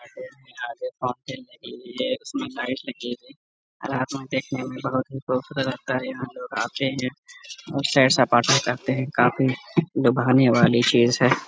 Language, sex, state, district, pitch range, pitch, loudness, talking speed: Hindi, male, Bihar, Araria, 125-140 Hz, 130 Hz, -23 LUFS, 145 wpm